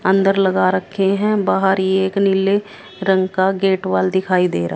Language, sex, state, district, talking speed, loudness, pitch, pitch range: Hindi, female, Haryana, Jhajjar, 190 wpm, -17 LUFS, 190 Hz, 185-195 Hz